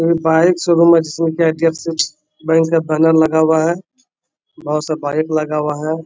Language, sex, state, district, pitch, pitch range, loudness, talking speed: Hindi, male, Bihar, Bhagalpur, 160 Hz, 155-165 Hz, -15 LUFS, 190 wpm